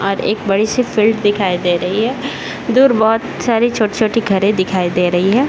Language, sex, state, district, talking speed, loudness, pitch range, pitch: Hindi, male, Bihar, Saran, 195 wpm, -15 LUFS, 190-230 Hz, 215 Hz